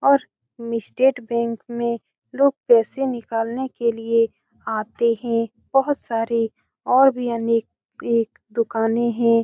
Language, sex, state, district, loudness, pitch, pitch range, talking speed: Hindi, female, Bihar, Saran, -21 LUFS, 235 Hz, 230-250 Hz, 125 wpm